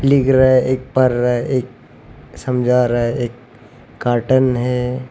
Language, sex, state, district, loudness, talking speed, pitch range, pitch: Hindi, male, Arunachal Pradesh, Papum Pare, -16 LUFS, 165 wpm, 120-130 Hz, 125 Hz